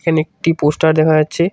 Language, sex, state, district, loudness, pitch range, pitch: Bengali, male, West Bengal, Cooch Behar, -15 LUFS, 155-165 Hz, 160 Hz